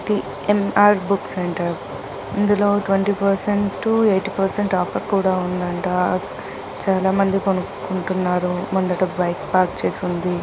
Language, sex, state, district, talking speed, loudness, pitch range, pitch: Telugu, female, Telangana, Nalgonda, 120 wpm, -20 LUFS, 180-200 Hz, 190 Hz